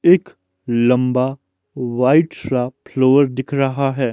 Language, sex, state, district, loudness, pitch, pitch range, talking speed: Hindi, male, Himachal Pradesh, Shimla, -17 LUFS, 130 Hz, 125-140 Hz, 115 wpm